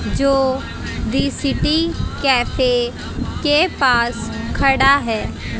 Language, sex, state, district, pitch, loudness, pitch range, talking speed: Hindi, female, Haryana, Jhajjar, 270 Hz, -18 LUFS, 250-280 Hz, 85 wpm